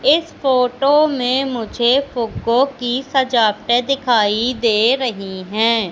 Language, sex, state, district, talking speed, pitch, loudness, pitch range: Hindi, female, Madhya Pradesh, Katni, 110 wpm, 245 Hz, -17 LUFS, 230-270 Hz